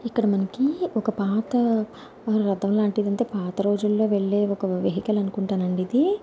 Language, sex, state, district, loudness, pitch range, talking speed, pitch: Telugu, female, Andhra Pradesh, Anantapur, -24 LUFS, 195-225 Hz, 135 wpm, 210 Hz